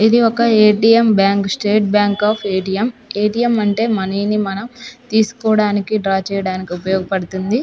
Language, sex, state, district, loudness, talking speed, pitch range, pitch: Telugu, female, Telangana, Nalgonda, -16 LUFS, 140 wpm, 195-225 Hz, 210 Hz